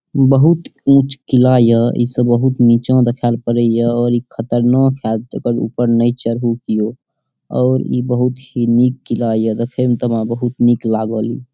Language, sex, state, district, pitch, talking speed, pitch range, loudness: Maithili, male, Bihar, Saharsa, 120 Hz, 180 wpm, 115-125 Hz, -15 LUFS